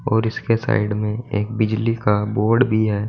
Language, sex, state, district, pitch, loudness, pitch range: Hindi, male, Uttar Pradesh, Saharanpur, 110 Hz, -20 LUFS, 105-115 Hz